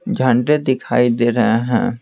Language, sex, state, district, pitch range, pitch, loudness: Hindi, male, Bihar, Patna, 120-130 Hz, 125 Hz, -16 LUFS